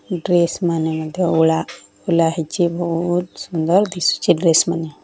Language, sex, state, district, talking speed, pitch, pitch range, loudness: Odia, female, Odisha, Nuapada, 130 wpm, 170 Hz, 160-175 Hz, -18 LUFS